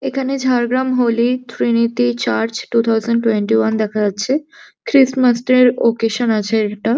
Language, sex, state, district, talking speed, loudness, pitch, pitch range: Bengali, male, West Bengal, Jhargram, 135 wpm, -16 LUFS, 230 Hz, 215-255 Hz